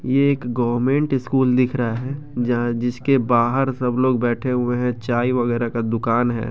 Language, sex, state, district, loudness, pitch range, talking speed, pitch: Maithili, male, Bihar, Begusarai, -20 LUFS, 120-130 Hz, 185 wpm, 125 Hz